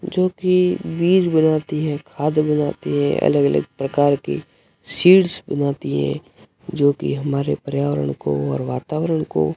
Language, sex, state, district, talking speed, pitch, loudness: Hindi, male, Rajasthan, Barmer, 145 wpm, 145 Hz, -19 LUFS